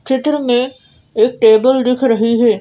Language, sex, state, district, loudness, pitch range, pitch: Hindi, female, Madhya Pradesh, Bhopal, -13 LUFS, 230-265 Hz, 250 Hz